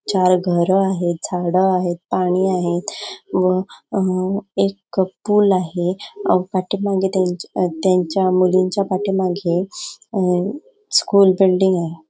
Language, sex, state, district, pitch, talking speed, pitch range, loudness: Marathi, female, Goa, North and South Goa, 185 Hz, 105 wpm, 180-195 Hz, -18 LUFS